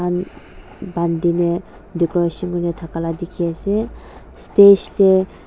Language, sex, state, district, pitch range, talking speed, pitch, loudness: Nagamese, female, Nagaland, Dimapur, 170-190 Hz, 110 wpm, 175 Hz, -18 LUFS